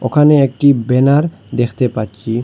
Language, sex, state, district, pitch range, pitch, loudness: Bengali, male, Assam, Hailakandi, 120-140 Hz, 130 Hz, -14 LUFS